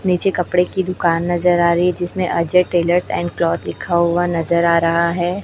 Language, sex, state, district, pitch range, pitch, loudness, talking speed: Hindi, female, Chhattisgarh, Raipur, 170-180 Hz, 175 Hz, -17 LUFS, 210 wpm